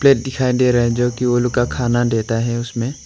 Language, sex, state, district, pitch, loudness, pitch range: Hindi, male, Arunachal Pradesh, Longding, 120 Hz, -18 LUFS, 120-125 Hz